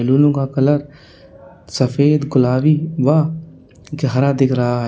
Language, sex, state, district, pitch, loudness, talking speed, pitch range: Hindi, male, Uttar Pradesh, Lalitpur, 140 Hz, -16 LUFS, 125 wpm, 130-150 Hz